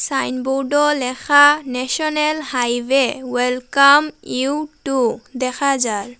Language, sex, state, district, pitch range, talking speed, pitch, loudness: Bengali, female, Assam, Hailakandi, 250-290 Hz, 95 wpm, 270 Hz, -17 LUFS